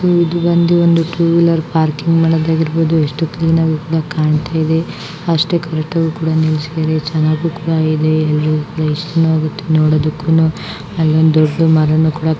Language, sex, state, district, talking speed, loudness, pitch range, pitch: Kannada, female, Karnataka, Mysore, 155 wpm, -14 LUFS, 155-165 Hz, 160 Hz